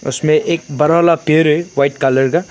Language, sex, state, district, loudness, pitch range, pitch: Hindi, male, Arunachal Pradesh, Longding, -14 LUFS, 140-170 Hz, 155 Hz